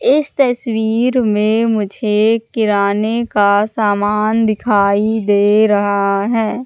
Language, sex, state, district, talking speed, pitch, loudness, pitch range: Hindi, female, Madhya Pradesh, Katni, 100 wpm, 215 Hz, -14 LUFS, 205-230 Hz